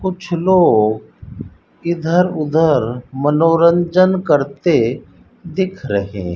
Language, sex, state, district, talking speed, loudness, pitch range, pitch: Hindi, male, Rajasthan, Bikaner, 75 wpm, -15 LUFS, 120-180 Hz, 165 Hz